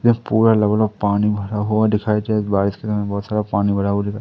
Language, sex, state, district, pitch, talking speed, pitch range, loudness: Hindi, male, Madhya Pradesh, Katni, 105 Hz, 255 wpm, 100-110 Hz, -19 LUFS